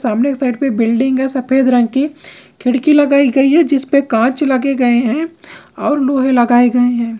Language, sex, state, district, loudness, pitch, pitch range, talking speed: Maithili, female, Bihar, Begusarai, -13 LUFS, 265 Hz, 245-280 Hz, 190 wpm